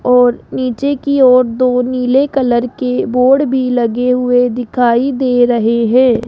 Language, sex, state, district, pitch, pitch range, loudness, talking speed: Hindi, female, Rajasthan, Jaipur, 250 Hz, 245-260 Hz, -13 LUFS, 155 wpm